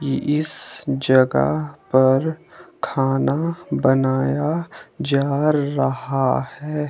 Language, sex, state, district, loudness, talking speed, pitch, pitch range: Hindi, male, Himachal Pradesh, Shimla, -20 LUFS, 70 wpm, 140 Hz, 135-150 Hz